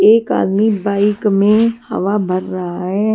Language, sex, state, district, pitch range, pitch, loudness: Hindi, female, Maharashtra, Washim, 190-215 Hz, 205 Hz, -15 LUFS